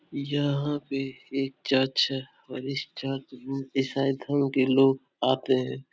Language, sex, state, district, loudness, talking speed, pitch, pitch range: Hindi, male, Uttar Pradesh, Etah, -27 LUFS, 150 wpm, 135 Hz, 130-135 Hz